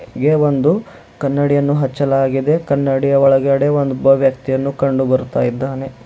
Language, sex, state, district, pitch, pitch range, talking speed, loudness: Kannada, male, Karnataka, Bidar, 135 Hz, 135-145 Hz, 120 wpm, -15 LUFS